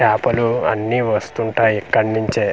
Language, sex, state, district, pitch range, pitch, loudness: Telugu, male, Andhra Pradesh, Manyam, 110-115 Hz, 110 Hz, -18 LUFS